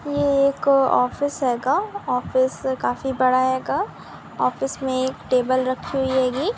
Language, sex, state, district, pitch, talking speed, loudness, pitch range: Hindi, female, Andhra Pradesh, Anantapur, 260 Hz, 135 wpm, -21 LUFS, 255-275 Hz